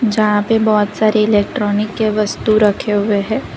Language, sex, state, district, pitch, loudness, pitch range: Hindi, female, Gujarat, Valsad, 215 Hz, -15 LUFS, 210-215 Hz